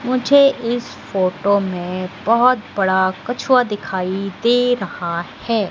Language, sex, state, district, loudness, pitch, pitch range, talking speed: Hindi, female, Madhya Pradesh, Katni, -18 LUFS, 210 Hz, 185-245 Hz, 115 wpm